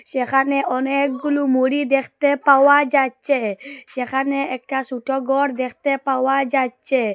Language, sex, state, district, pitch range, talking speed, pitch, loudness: Bengali, female, Assam, Hailakandi, 260-280 Hz, 115 wpm, 270 Hz, -19 LUFS